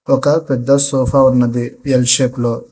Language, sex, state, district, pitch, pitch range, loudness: Telugu, male, Telangana, Hyderabad, 130 Hz, 120-135 Hz, -14 LUFS